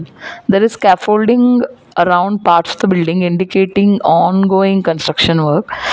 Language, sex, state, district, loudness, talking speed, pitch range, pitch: English, female, Gujarat, Valsad, -13 LUFS, 120 wpm, 170-210 Hz, 190 Hz